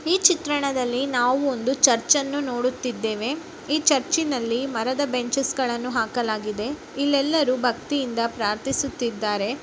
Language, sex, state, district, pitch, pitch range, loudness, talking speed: Kannada, female, Karnataka, Bellary, 255 Hz, 235-280 Hz, -23 LUFS, 100 wpm